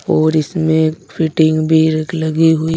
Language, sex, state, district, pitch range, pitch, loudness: Hindi, male, Uttar Pradesh, Saharanpur, 155-160 Hz, 160 Hz, -14 LUFS